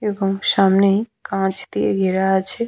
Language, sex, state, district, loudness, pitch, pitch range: Bengali, female, West Bengal, Malda, -18 LUFS, 195 Hz, 190-210 Hz